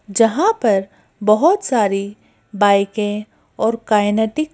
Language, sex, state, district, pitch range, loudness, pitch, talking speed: Hindi, female, Madhya Pradesh, Bhopal, 205-230 Hz, -17 LUFS, 215 Hz, 95 wpm